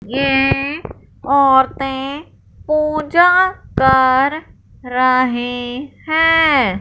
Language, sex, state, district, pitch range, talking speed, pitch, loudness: Hindi, male, Punjab, Fazilka, 260-305 Hz, 55 wpm, 275 Hz, -15 LUFS